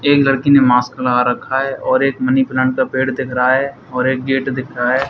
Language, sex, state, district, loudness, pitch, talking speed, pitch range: Hindi, male, Haryana, Charkhi Dadri, -16 LUFS, 130 Hz, 260 wpm, 130-135 Hz